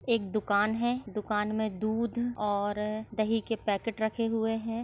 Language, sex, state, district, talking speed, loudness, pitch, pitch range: Hindi, female, Bihar, Sitamarhi, 160 wpm, -30 LUFS, 220 Hz, 210-230 Hz